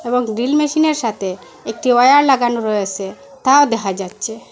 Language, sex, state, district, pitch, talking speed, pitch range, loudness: Bengali, female, Assam, Hailakandi, 240 Hz, 145 wpm, 210-275 Hz, -16 LUFS